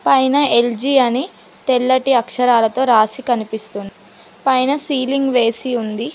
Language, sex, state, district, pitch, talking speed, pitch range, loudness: Telugu, female, Telangana, Mahabubabad, 250 Hz, 105 wpm, 230-265 Hz, -16 LUFS